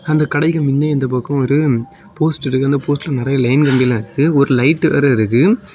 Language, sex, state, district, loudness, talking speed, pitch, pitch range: Tamil, male, Tamil Nadu, Kanyakumari, -15 LUFS, 200 wpm, 140 Hz, 130-155 Hz